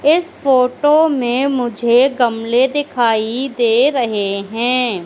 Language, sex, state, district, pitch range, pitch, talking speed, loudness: Hindi, female, Madhya Pradesh, Katni, 235-270 Hz, 250 Hz, 105 wpm, -15 LUFS